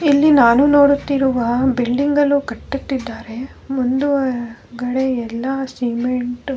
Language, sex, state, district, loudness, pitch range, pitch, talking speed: Kannada, female, Karnataka, Bellary, -17 LUFS, 245-280 Hz, 260 Hz, 90 wpm